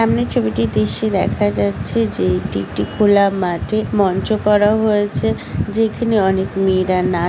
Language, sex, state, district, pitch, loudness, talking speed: Bengali, female, West Bengal, Paschim Medinipur, 180 Hz, -17 LUFS, 140 wpm